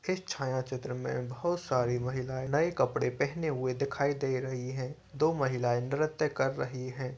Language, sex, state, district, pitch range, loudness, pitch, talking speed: Hindi, male, Uttar Pradesh, Varanasi, 130-150 Hz, -32 LUFS, 130 Hz, 175 wpm